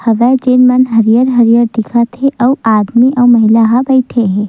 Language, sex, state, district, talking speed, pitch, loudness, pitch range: Chhattisgarhi, female, Chhattisgarh, Sukma, 175 wpm, 240 Hz, -9 LUFS, 225-250 Hz